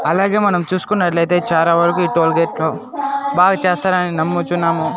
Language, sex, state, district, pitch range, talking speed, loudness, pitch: Telugu, male, Andhra Pradesh, Annamaya, 170-190 Hz, 135 wpm, -16 LUFS, 175 Hz